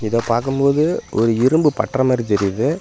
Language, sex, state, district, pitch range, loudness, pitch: Tamil, male, Tamil Nadu, Namakkal, 115-140 Hz, -17 LUFS, 130 Hz